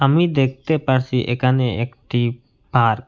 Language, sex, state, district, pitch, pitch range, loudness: Bengali, male, Assam, Hailakandi, 130 Hz, 120-135 Hz, -19 LUFS